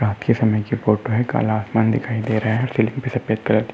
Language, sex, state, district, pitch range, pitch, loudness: Hindi, male, Uttar Pradesh, Muzaffarnagar, 110-120 Hz, 110 Hz, -20 LUFS